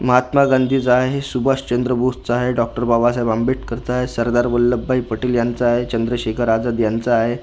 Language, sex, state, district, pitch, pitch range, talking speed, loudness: Marathi, male, Maharashtra, Gondia, 120 Hz, 120-125 Hz, 160 wpm, -18 LUFS